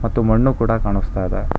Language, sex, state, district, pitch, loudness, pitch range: Kannada, male, Karnataka, Bangalore, 110 Hz, -19 LUFS, 95-115 Hz